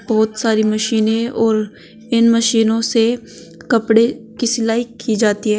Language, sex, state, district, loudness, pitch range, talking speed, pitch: Hindi, female, Uttar Pradesh, Saharanpur, -16 LUFS, 220-230 Hz, 140 wpm, 225 Hz